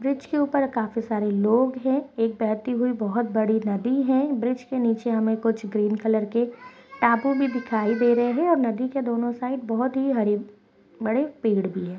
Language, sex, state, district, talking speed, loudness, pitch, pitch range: Hindi, female, Chhattisgarh, Bastar, 195 wpm, -24 LUFS, 235 Hz, 220-260 Hz